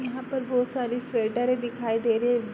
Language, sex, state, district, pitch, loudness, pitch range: Hindi, female, Uttar Pradesh, Jalaun, 245 Hz, -27 LUFS, 235-250 Hz